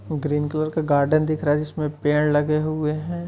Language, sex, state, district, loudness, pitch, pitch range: Hindi, male, Uttar Pradesh, Muzaffarnagar, -22 LUFS, 150 Hz, 150-155 Hz